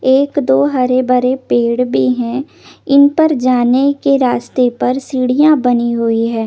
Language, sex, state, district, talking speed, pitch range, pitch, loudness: Hindi, female, Chandigarh, Chandigarh, 150 wpm, 245-275 Hz, 255 Hz, -13 LUFS